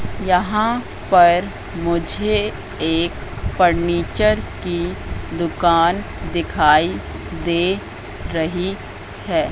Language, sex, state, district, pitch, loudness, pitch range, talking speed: Hindi, female, Madhya Pradesh, Katni, 170 Hz, -19 LUFS, 150-180 Hz, 70 wpm